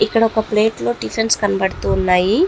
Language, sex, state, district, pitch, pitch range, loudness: Telugu, female, Andhra Pradesh, Chittoor, 210 Hz, 185-225 Hz, -17 LUFS